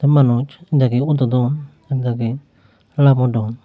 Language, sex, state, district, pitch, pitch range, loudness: Chakma, male, Tripura, Unakoti, 130 Hz, 120-140 Hz, -17 LUFS